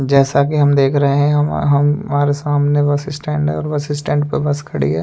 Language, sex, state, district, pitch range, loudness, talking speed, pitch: Hindi, male, Delhi, New Delhi, 140-145 Hz, -16 LUFS, 240 wpm, 145 Hz